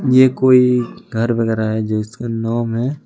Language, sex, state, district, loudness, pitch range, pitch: Hindi, male, Jharkhand, Deoghar, -16 LUFS, 115-130 Hz, 115 Hz